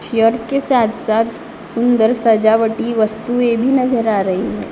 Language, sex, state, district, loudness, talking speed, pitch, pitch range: Hindi, female, Maharashtra, Gondia, -15 LUFS, 140 wpm, 225 Hz, 220-240 Hz